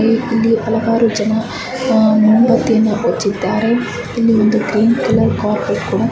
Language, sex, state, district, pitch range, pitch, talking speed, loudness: Kannada, female, Karnataka, Bijapur, 215-230 Hz, 225 Hz, 125 wpm, -14 LUFS